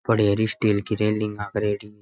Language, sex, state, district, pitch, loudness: Rajasthani, male, Rajasthan, Nagaur, 105 Hz, -23 LUFS